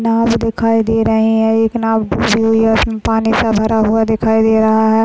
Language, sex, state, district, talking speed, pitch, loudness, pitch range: Hindi, female, Maharashtra, Chandrapur, 215 wpm, 225 Hz, -13 LUFS, 220-225 Hz